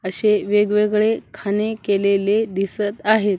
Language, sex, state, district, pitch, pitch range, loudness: Marathi, female, Maharashtra, Washim, 210 Hz, 200-215 Hz, -19 LUFS